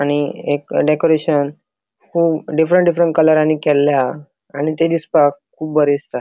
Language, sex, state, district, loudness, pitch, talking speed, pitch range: Konkani, male, Goa, North and South Goa, -16 LUFS, 155 Hz, 145 wpm, 145-165 Hz